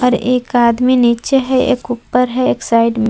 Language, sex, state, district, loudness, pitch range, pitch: Hindi, female, Jharkhand, Palamu, -14 LUFS, 235-255 Hz, 250 Hz